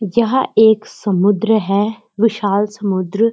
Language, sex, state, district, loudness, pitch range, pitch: Hindi, female, Uttarakhand, Uttarkashi, -16 LUFS, 200-220 Hz, 210 Hz